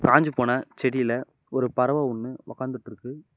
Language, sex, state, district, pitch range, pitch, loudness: Tamil, male, Tamil Nadu, Namakkal, 125-140 Hz, 130 Hz, -25 LUFS